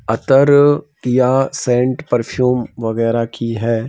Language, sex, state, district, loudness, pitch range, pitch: Hindi, male, Madhya Pradesh, Bhopal, -15 LUFS, 115-135 Hz, 125 Hz